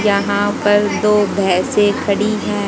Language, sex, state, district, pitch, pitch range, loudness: Hindi, female, Haryana, Jhajjar, 205 Hz, 200-210 Hz, -15 LUFS